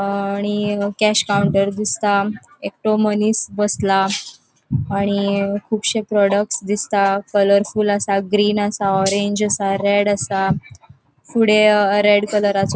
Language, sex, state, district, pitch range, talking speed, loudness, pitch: Konkani, female, Goa, North and South Goa, 200-210 Hz, 125 wpm, -18 LUFS, 205 Hz